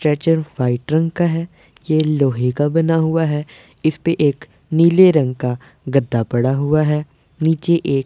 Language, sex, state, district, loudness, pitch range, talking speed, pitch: Hindi, male, Punjab, Pathankot, -17 LUFS, 135-165 Hz, 165 wpm, 155 Hz